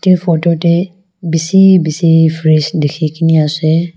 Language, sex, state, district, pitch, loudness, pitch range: Nagamese, female, Nagaland, Kohima, 165 Hz, -11 LUFS, 155-175 Hz